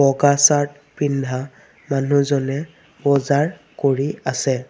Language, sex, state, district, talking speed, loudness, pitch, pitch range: Assamese, male, Assam, Sonitpur, 90 wpm, -19 LUFS, 140 Hz, 135-145 Hz